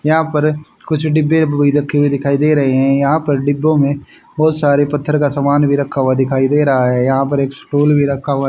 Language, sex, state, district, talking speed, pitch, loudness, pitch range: Hindi, male, Haryana, Charkhi Dadri, 240 wpm, 145 Hz, -14 LUFS, 140-150 Hz